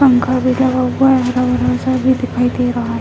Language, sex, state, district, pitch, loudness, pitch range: Hindi, female, Bihar, Jamui, 255 Hz, -15 LUFS, 245-260 Hz